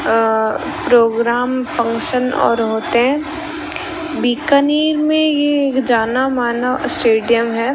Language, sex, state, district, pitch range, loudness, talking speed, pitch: Hindi, female, Rajasthan, Bikaner, 235-305 Hz, -16 LUFS, 100 wpm, 255 Hz